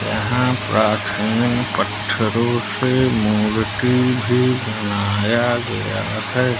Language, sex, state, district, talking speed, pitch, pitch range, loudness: Hindi, male, Madhya Pradesh, Umaria, 80 wpm, 115 Hz, 105-125 Hz, -18 LUFS